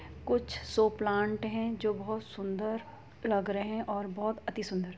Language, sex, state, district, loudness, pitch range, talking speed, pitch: Hindi, female, Uttar Pradesh, Jyotiba Phule Nagar, -33 LUFS, 200-220 Hz, 170 wpm, 215 Hz